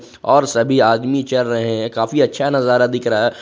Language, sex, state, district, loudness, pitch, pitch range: Hindi, male, Jharkhand, Ranchi, -16 LUFS, 125 Hz, 115-135 Hz